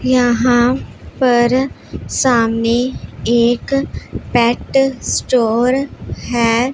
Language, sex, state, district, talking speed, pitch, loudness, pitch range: Hindi, female, Punjab, Pathankot, 60 wpm, 245 Hz, -15 LUFS, 235-255 Hz